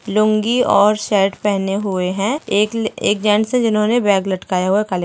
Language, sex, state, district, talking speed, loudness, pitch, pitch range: Hindi, female, Andhra Pradesh, Krishna, 200 wpm, -17 LUFS, 210 Hz, 195-215 Hz